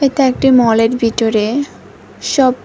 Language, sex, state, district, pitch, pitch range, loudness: Bengali, female, Tripura, West Tripura, 250 Hz, 225-270 Hz, -13 LUFS